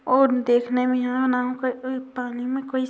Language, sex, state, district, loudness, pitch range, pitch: Hindi, female, Bihar, Sitamarhi, -23 LUFS, 250-260 Hz, 255 Hz